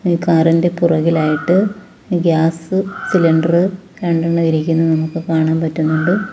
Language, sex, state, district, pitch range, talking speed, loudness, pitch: Malayalam, female, Kerala, Kollam, 160-180 Hz, 105 wpm, -15 LUFS, 165 Hz